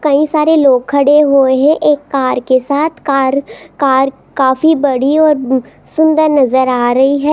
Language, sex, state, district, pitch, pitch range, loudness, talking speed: Hindi, female, Rajasthan, Jaipur, 280 Hz, 265-300 Hz, -11 LUFS, 165 wpm